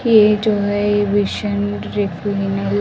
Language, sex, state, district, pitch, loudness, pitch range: Hindi, female, Delhi, New Delhi, 205 Hz, -17 LUFS, 200-210 Hz